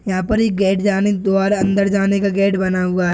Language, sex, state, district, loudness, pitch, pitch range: Hindi, male, Bihar, Purnia, -17 LUFS, 195 Hz, 190-200 Hz